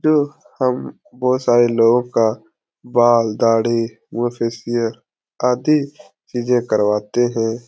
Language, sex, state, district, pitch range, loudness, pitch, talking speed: Hindi, male, Bihar, Supaul, 115-125 Hz, -18 LUFS, 120 Hz, 115 wpm